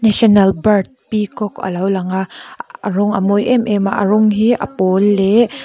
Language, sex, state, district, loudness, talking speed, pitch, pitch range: Mizo, female, Mizoram, Aizawl, -15 LUFS, 200 wpm, 205 Hz, 195-215 Hz